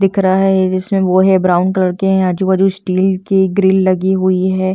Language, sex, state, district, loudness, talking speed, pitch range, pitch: Hindi, female, Delhi, New Delhi, -13 LUFS, 225 wpm, 185-190 Hz, 190 Hz